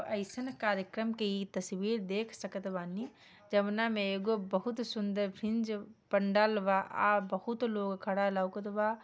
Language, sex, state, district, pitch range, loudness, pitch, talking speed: Bhojpuri, female, Bihar, Gopalganj, 195-220 Hz, -34 LUFS, 205 Hz, 140 wpm